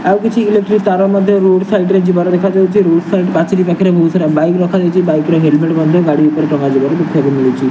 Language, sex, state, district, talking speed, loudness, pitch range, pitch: Odia, male, Odisha, Nuapada, 220 wpm, -12 LUFS, 160-190 Hz, 180 Hz